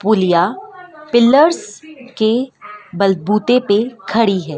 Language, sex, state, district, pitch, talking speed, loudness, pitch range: Hindi, female, Madhya Pradesh, Dhar, 225 Hz, 90 wpm, -15 LUFS, 200-265 Hz